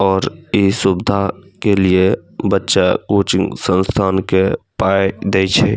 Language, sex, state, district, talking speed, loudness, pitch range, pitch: Maithili, male, Bihar, Saharsa, 125 wpm, -16 LUFS, 95-100 Hz, 95 Hz